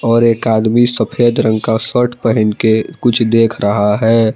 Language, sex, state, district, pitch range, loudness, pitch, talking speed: Hindi, male, Jharkhand, Palamu, 110-120 Hz, -13 LUFS, 115 Hz, 180 wpm